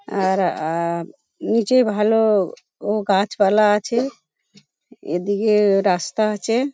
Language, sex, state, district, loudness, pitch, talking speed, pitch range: Bengali, female, West Bengal, Paschim Medinipur, -19 LUFS, 210 Hz, 100 wpm, 190-220 Hz